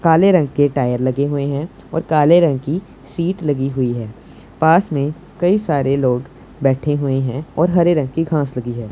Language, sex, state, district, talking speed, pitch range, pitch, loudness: Hindi, male, Punjab, Pathankot, 200 wpm, 135-165 Hz, 145 Hz, -17 LUFS